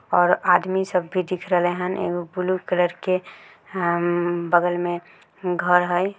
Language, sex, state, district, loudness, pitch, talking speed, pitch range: Maithili, female, Bihar, Samastipur, -22 LUFS, 180 Hz, 155 wpm, 175-185 Hz